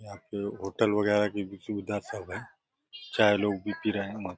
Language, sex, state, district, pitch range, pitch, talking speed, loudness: Hindi, male, Uttar Pradesh, Deoria, 100-105 Hz, 105 Hz, 165 wpm, -29 LUFS